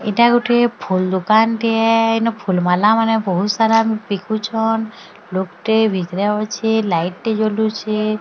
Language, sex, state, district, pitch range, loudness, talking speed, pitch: Odia, female, Odisha, Sambalpur, 200-225 Hz, -17 LUFS, 115 wpm, 220 Hz